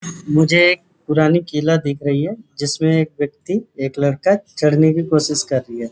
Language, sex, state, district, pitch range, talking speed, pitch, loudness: Hindi, male, Jharkhand, Sahebganj, 145-175 Hz, 205 wpm, 155 Hz, -17 LUFS